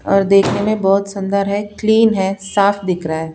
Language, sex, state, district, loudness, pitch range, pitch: Hindi, female, Bihar, Patna, -15 LUFS, 195-205 Hz, 195 Hz